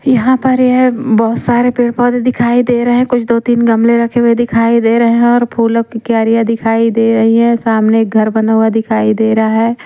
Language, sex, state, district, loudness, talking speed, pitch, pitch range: Hindi, female, Punjab, Pathankot, -11 LUFS, 225 wpm, 235 Hz, 225-240 Hz